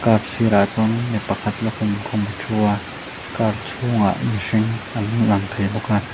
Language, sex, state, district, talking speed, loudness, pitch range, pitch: Mizo, male, Mizoram, Aizawl, 185 wpm, -21 LUFS, 100-115 Hz, 105 Hz